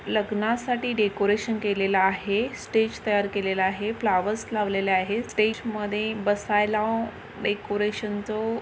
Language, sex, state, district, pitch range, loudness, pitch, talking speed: Marathi, female, Maharashtra, Sindhudurg, 205-220 Hz, -25 LUFS, 210 Hz, 110 wpm